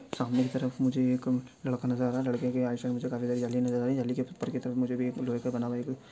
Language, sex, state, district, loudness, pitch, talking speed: Hindi, male, Chhattisgarh, Bastar, -31 LUFS, 125 Hz, 305 wpm